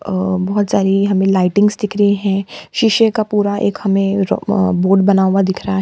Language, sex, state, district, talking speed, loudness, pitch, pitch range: Hindi, female, Uttar Pradesh, Jalaun, 205 wpm, -15 LUFS, 195 Hz, 190-205 Hz